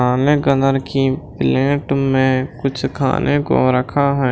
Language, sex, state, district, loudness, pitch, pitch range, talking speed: Hindi, male, Maharashtra, Washim, -17 LUFS, 135 Hz, 130-140 Hz, 140 wpm